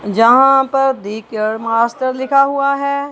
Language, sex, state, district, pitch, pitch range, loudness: Hindi, female, Punjab, Kapurthala, 260 Hz, 230-275 Hz, -14 LUFS